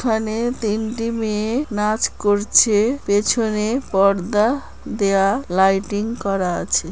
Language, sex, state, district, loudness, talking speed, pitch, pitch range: Bengali, female, West Bengal, Kolkata, -19 LUFS, 95 wpm, 215 Hz, 200-230 Hz